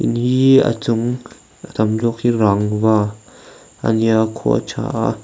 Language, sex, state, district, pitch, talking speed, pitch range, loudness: Mizo, male, Mizoram, Aizawl, 115 Hz, 160 wpm, 110-120 Hz, -17 LUFS